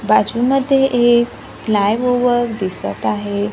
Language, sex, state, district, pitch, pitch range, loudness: Marathi, female, Maharashtra, Gondia, 235 Hz, 185-245 Hz, -16 LUFS